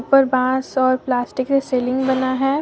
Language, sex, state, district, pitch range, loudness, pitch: Hindi, female, Jharkhand, Deoghar, 255-270 Hz, -19 LUFS, 260 Hz